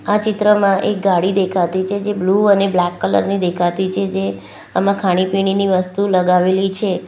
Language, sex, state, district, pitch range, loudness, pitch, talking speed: Gujarati, female, Gujarat, Valsad, 185-200 Hz, -16 LUFS, 195 Hz, 170 wpm